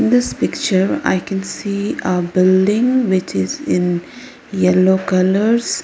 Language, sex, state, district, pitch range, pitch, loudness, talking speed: English, female, Arunachal Pradesh, Lower Dibang Valley, 185-230 Hz, 190 Hz, -16 LUFS, 135 wpm